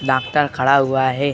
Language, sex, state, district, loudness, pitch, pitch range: Hindi, male, Uttar Pradesh, Jalaun, -17 LUFS, 135 Hz, 130-140 Hz